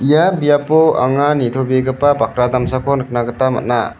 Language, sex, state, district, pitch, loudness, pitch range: Garo, male, Meghalaya, West Garo Hills, 130 Hz, -15 LUFS, 125-145 Hz